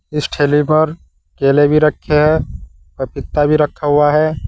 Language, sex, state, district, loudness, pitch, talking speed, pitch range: Hindi, male, Uttar Pradesh, Saharanpur, -14 LUFS, 150 Hz, 160 wpm, 140-150 Hz